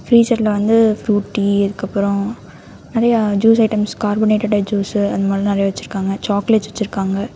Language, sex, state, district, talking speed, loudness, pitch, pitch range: Tamil, female, Karnataka, Bangalore, 120 wpm, -17 LUFS, 205 Hz, 200-220 Hz